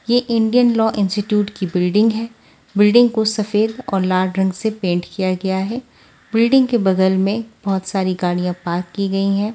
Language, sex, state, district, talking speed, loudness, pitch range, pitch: Hindi, female, Delhi, New Delhi, 180 wpm, -18 LUFS, 190-225 Hz, 205 Hz